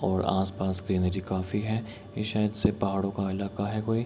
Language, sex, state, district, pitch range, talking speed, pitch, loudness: Hindi, male, Bihar, Kishanganj, 95-105 Hz, 205 wpm, 100 Hz, -29 LUFS